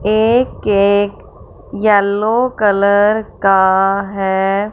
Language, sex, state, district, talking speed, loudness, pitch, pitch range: Hindi, female, Punjab, Fazilka, 75 wpm, -14 LUFS, 200 Hz, 195-215 Hz